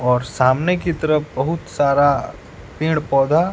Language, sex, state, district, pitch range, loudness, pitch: Hindi, male, Bihar, West Champaran, 135-160 Hz, -18 LUFS, 150 Hz